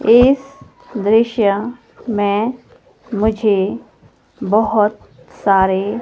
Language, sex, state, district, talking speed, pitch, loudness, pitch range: Hindi, female, Himachal Pradesh, Shimla, 60 wpm, 215 Hz, -16 LUFS, 205-235 Hz